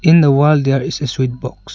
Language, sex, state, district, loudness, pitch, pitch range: English, male, Arunachal Pradesh, Longding, -14 LUFS, 140 Hz, 130-150 Hz